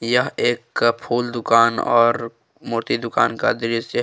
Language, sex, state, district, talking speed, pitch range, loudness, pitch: Hindi, male, Jharkhand, Deoghar, 165 wpm, 115-120 Hz, -19 LUFS, 120 Hz